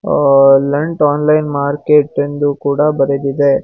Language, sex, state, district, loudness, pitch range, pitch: Kannada, male, Karnataka, Bangalore, -13 LUFS, 140-150 Hz, 145 Hz